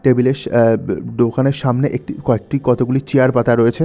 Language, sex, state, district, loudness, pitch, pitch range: Bengali, male, West Bengal, North 24 Parganas, -16 LUFS, 125 Hz, 120-135 Hz